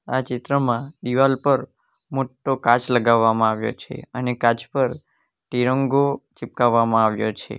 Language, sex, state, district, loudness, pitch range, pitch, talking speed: Gujarati, male, Gujarat, Valsad, -21 LUFS, 115-135 Hz, 125 Hz, 125 wpm